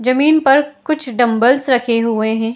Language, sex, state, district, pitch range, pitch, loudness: Hindi, female, Uttar Pradesh, Muzaffarnagar, 230-280 Hz, 250 Hz, -14 LUFS